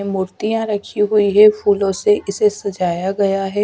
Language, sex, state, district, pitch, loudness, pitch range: Hindi, female, Chhattisgarh, Raipur, 205 Hz, -16 LUFS, 195-210 Hz